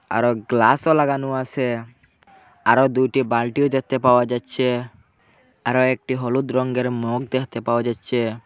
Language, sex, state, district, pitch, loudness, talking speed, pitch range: Bengali, male, Assam, Hailakandi, 125 Hz, -20 LUFS, 130 wpm, 120-130 Hz